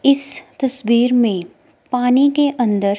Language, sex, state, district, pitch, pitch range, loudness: Hindi, female, Himachal Pradesh, Shimla, 250 Hz, 230-275 Hz, -17 LUFS